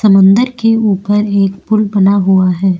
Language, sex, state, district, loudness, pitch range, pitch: Hindi, female, Uttar Pradesh, Jyotiba Phule Nagar, -11 LUFS, 195-215 Hz, 200 Hz